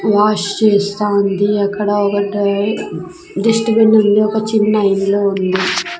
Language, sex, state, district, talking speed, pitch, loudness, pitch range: Telugu, female, Andhra Pradesh, Sri Satya Sai, 120 wpm, 205 Hz, -14 LUFS, 200-215 Hz